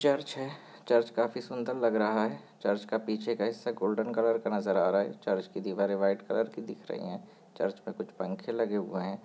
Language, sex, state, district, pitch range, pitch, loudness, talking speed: Hindi, male, Goa, North and South Goa, 105-120 Hz, 115 Hz, -32 LUFS, 235 wpm